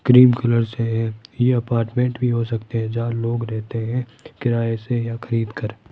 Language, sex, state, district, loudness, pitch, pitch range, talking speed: Hindi, male, Rajasthan, Jaipur, -21 LUFS, 115 Hz, 115-120 Hz, 195 wpm